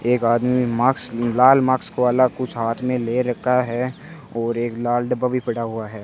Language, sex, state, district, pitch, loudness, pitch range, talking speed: Hindi, male, Rajasthan, Bikaner, 125 Hz, -20 LUFS, 115-125 Hz, 210 wpm